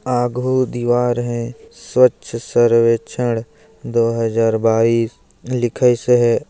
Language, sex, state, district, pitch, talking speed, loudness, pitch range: Hindi, male, Chhattisgarh, Jashpur, 120 Hz, 100 wpm, -17 LUFS, 115-125 Hz